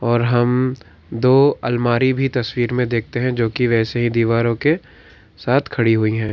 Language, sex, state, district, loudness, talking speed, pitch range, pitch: Hindi, male, Karnataka, Bangalore, -18 LUFS, 180 wpm, 115-125 Hz, 120 Hz